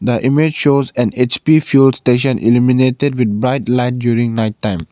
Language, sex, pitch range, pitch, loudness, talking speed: English, male, 120-135 Hz, 125 Hz, -14 LUFS, 170 wpm